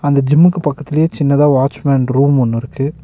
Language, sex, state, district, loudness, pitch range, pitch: Tamil, male, Tamil Nadu, Nilgiris, -13 LUFS, 135-150 Hz, 140 Hz